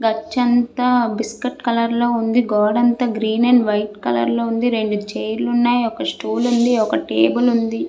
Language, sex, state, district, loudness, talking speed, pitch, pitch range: Telugu, female, Andhra Pradesh, Visakhapatnam, -18 LUFS, 185 wpm, 230 Hz, 210-240 Hz